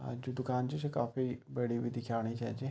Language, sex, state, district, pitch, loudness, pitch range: Garhwali, male, Uttarakhand, Tehri Garhwal, 125 Hz, -37 LUFS, 120-130 Hz